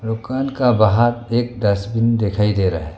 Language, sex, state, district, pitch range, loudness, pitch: Hindi, male, Arunachal Pradesh, Longding, 105-120 Hz, -18 LUFS, 115 Hz